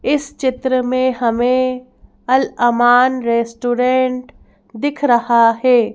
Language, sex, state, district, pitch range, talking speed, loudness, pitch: Hindi, female, Madhya Pradesh, Bhopal, 235-255 Hz, 90 wpm, -15 LUFS, 250 Hz